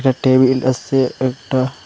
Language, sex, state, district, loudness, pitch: Bengali, male, Assam, Hailakandi, -16 LUFS, 130 Hz